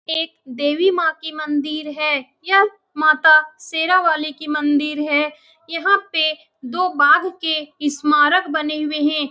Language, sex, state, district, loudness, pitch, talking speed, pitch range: Hindi, female, Bihar, Saran, -18 LUFS, 310 Hz, 135 wpm, 295-325 Hz